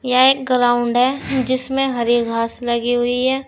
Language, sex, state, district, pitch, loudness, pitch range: Hindi, female, Uttar Pradesh, Saharanpur, 250 Hz, -17 LUFS, 240-260 Hz